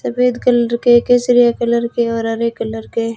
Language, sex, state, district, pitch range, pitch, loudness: Hindi, female, Rajasthan, Jaisalmer, 230-245 Hz, 235 Hz, -15 LUFS